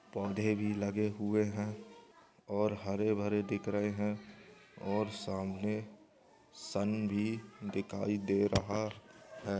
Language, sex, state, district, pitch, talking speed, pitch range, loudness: Hindi, male, Andhra Pradesh, Anantapur, 105 Hz, 125 wpm, 100-105 Hz, -36 LUFS